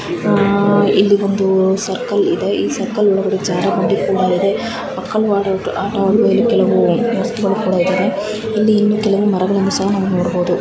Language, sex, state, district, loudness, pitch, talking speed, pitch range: Kannada, female, Karnataka, Mysore, -15 LUFS, 200 Hz, 155 wpm, 190-205 Hz